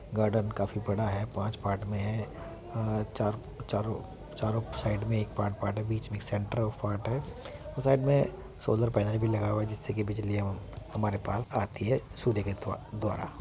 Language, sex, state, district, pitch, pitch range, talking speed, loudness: Hindi, male, Uttar Pradesh, Muzaffarnagar, 105 Hz, 100-110 Hz, 200 wpm, -32 LUFS